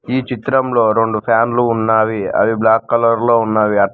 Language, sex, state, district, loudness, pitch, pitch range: Telugu, male, Telangana, Mahabubabad, -14 LUFS, 115 Hz, 110-120 Hz